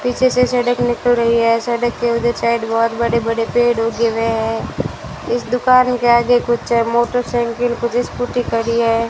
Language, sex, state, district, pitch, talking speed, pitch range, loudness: Hindi, female, Rajasthan, Bikaner, 235 Hz, 170 wpm, 230-245 Hz, -16 LUFS